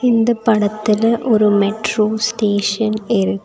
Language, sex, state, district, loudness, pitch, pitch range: Tamil, female, Tamil Nadu, Nilgiris, -16 LUFS, 215 Hz, 210-225 Hz